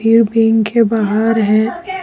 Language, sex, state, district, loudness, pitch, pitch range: Hindi, female, Jharkhand, Deoghar, -13 LUFS, 225 Hz, 220-230 Hz